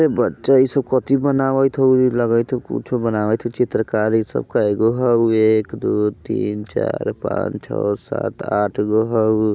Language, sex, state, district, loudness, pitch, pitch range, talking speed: Bajjika, male, Bihar, Vaishali, -19 LUFS, 115 Hz, 110-130 Hz, 165 wpm